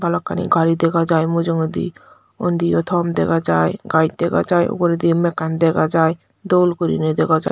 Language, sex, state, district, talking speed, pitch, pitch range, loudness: Chakma, female, Tripura, Dhalai, 175 wpm, 170 Hz, 160-175 Hz, -18 LUFS